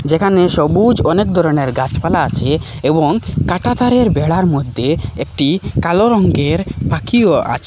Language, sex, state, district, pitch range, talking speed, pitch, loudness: Bengali, male, Assam, Hailakandi, 145-205 Hz, 115 wpm, 165 Hz, -14 LUFS